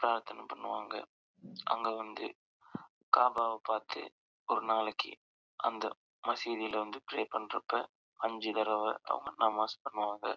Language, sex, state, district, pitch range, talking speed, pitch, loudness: Tamil, male, Karnataka, Chamarajanagar, 105-115 Hz, 110 wpm, 110 Hz, -35 LUFS